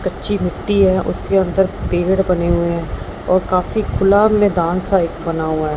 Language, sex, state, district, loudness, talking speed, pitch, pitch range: Hindi, female, Punjab, Fazilka, -17 LUFS, 175 wpm, 185 Hz, 170-195 Hz